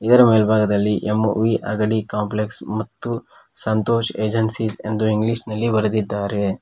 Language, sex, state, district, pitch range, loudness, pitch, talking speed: Kannada, male, Karnataka, Koppal, 105-110 Hz, -20 LUFS, 110 Hz, 110 wpm